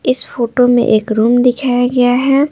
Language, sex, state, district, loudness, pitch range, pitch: Hindi, female, Bihar, Patna, -12 LUFS, 240-255 Hz, 245 Hz